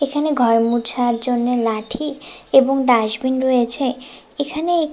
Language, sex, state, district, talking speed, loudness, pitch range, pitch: Bengali, female, West Bengal, Cooch Behar, 135 wpm, -18 LUFS, 235-285 Hz, 255 Hz